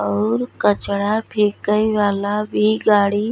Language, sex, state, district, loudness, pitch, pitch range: Bhojpuri, female, Uttar Pradesh, Gorakhpur, -18 LUFS, 210 Hz, 205-215 Hz